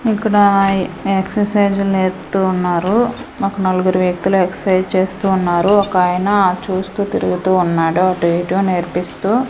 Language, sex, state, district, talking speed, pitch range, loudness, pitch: Telugu, female, Andhra Pradesh, Manyam, 115 wpm, 185-200 Hz, -16 LUFS, 190 Hz